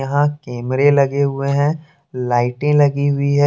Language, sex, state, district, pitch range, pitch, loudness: Hindi, male, Jharkhand, Deoghar, 135-145 Hz, 140 Hz, -17 LUFS